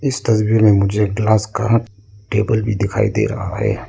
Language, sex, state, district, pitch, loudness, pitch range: Hindi, male, Arunachal Pradesh, Lower Dibang Valley, 110 Hz, -17 LUFS, 105-110 Hz